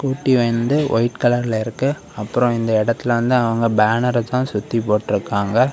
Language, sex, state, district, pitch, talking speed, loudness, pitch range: Tamil, male, Tamil Nadu, Kanyakumari, 120 Hz, 135 wpm, -18 LUFS, 115-125 Hz